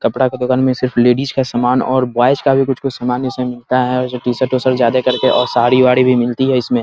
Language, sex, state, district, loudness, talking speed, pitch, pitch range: Hindi, male, Bihar, Muzaffarpur, -14 LUFS, 280 wpm, 125 Hz, 125-130 Hz